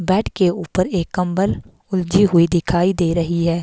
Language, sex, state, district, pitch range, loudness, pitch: Hindi, female, Himachal Pradesh, Shimla, 170-185 Hz, -18 LUFS, 180 Hz